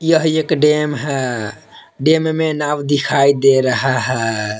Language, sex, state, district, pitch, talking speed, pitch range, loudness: Hindi, male, Jharkhand, Palamu, 140 Hz, 145 wpm, 130-155 Hz, -16 LUFS